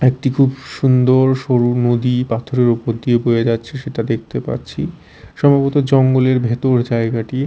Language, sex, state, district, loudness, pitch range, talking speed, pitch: Bengali, male, Chhattisgarh, Raipur, -16 LUFS, 115-130 Hz, 135 wpm, 125 Hz